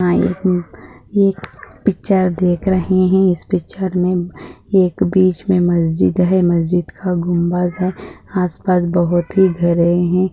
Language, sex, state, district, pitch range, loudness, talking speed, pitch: Hindi, female, Maharashtra, Dhule, 175-185 Hz, -16 LUFS, 140 wpm, 180 Hz